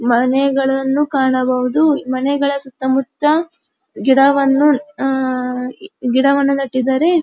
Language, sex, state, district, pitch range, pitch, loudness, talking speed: Kannada, female, Karnataka, Dharwad, 260-285 Hz, 270 Hz, -16 LUFS, 65 wpm